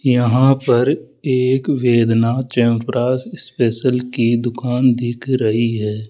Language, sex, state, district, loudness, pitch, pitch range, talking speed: Hindi, male, Rajasthan, Jaipur, -17 LUFS, 120 Hz, 115-130 Hz, 110 wpm